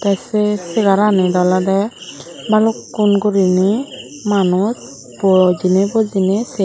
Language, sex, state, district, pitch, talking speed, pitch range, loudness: Chakma, female, Tripura, Dhalai, 200 Hz, 90 wpm, 190-215 Hz, -15 LUFS